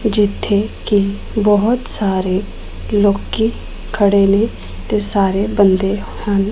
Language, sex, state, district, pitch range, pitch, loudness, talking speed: Punjabi, female, Punjab, Pathankot, 200-210 Hz, 205 Hz, -16 LUFS, 100 wpm